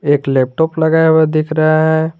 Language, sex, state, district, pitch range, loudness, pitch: Hindi, male, Jharkhand, Garhwa, 155-160 Hz, -13 LUFS, 160 Hz